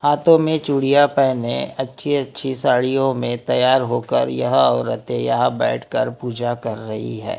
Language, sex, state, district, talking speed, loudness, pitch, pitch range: Hindi, male, Maharashtra, Gondia, 145 wpm, -19 LUFS, 130 Hz, 120-140 Hz